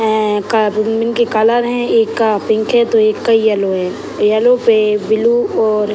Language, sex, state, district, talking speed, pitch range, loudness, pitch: Hindi, male, Bihar, Purnia, 200 wpm, 215-235 Hz, -14 LUFS, 220 Hz